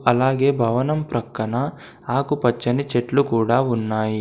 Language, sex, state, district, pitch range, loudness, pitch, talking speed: Telugu, male, Telangana, Komaram Bheem, 115-140 Hz, -21 LUFS, 120 Hz, 100 wpm